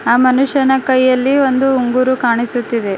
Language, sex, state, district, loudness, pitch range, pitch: Kannada, female, Karnataka, Bidar, -13 LUFS, 240-265 Hz, 255 Hz